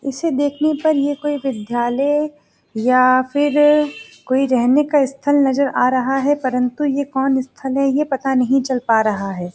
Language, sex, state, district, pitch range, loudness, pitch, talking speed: Hindi, female, Uttar Pradesh, Varanasi, 255-290 Hz, -17 LUFS, 270 Hz, 175 wpm